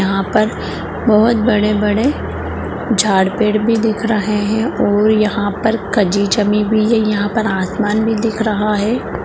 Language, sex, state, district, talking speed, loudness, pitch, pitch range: Hindi, female, Bihar, Purnia, 150 wpm, -15 LUFS, 215 Hz, 205-220 Hz